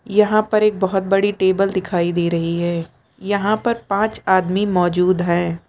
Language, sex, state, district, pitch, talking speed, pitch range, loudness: Hindi, female, Uttar Pradesh, Lucknow, 190 Hz, 170 wpm, 175-205 Hz, -18 LUFS